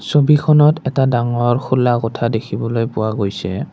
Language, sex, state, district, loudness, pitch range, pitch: Assamese, male, Assam, Kamrup Metropolitan, -16 LUFS, 115-135 Hz, 120 Hz